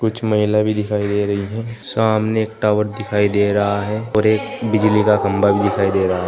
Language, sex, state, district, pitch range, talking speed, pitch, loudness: Hindi, male, Uttar Pradesh, Saharanpur, 100-110 Hz, 230 wpm, 105 Hz, -18 LUFS